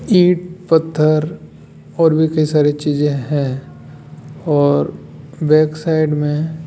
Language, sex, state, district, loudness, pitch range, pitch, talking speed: Hindi, male, Rajasthan, Jaipur, -16 LUFS, 145-160 Hz, 150 Hz, 115 wpm